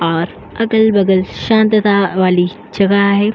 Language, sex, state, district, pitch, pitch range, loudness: Hindi, female, Uttar Pradesh, Jyotiba Phule Nagar, 200 Hz, 185-215 Hz, -13 LUFS